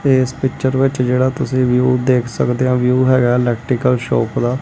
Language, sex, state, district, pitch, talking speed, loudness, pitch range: Punjabi, male, Punjab, Kapurthala, 125 Hz, 180 wpm, -16 LUFS, 125-130 Hz